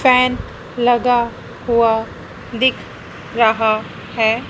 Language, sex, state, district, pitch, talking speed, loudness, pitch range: Hindi, female, Madhya Pradesh, Dhar, 235 Hz, 80 wpm, -17 LUFS, 225-245 Hz